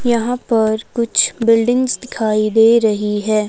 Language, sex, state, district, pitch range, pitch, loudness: Hindi, female, Himachal Pradesh, Shimla, 215-240 Hz, 225 Hz, -15 LUFS